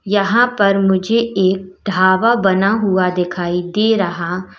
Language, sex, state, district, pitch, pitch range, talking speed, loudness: Hindi, female, Uttar Pradesh, Lalitpur, 195 Hz, 185-210 Hz, 145 wpm, -15 LUFS